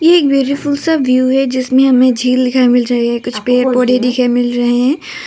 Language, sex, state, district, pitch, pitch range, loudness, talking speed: Hindi, female, Arunachal Pradesh, Papum Pare, 255 Hz, 245-270 Hz, -12 LUFS, 225 wpm